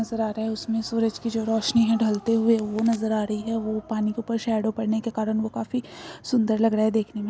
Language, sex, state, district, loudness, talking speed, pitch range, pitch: Hindi, female, Chhattisgarh, Korba, -25 LUFS, 270 wpm, 215-230 Hz, 220 Hz